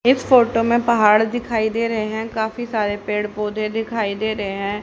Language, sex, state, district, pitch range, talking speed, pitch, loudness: Hindi, male, Haryana, Rohtak, 210-230 Hz, 200 wpm, 220 Hz, -19 LUFS